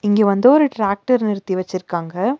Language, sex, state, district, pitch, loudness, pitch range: Tamil, female, Tamil Nadu, Nilgiris, 205 Hz, -17 LUFS, 185-250 Hz